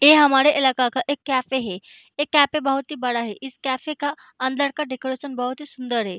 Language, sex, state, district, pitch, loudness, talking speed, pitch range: Hindi, female, Bihar, Araria, 265 Hz, -22 LUFS, 225 wpm, 255-285 Hz